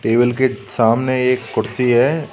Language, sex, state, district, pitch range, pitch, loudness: Hindi, male, Uttar Pradesh, Shamli, 115-130 Hz, 125 Hz, -17 LUFS